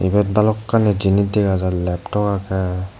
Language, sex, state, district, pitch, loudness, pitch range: Chakma, male, Tripura, Dhalai, 100 Hz, -18 LUFS, 95-105 Hz